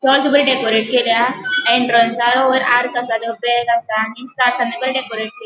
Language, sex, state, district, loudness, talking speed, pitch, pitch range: Konkani, female, Goa, North and South Goa, -15 LUFS, 145 wpm, 245 Hz, 230-260 Hz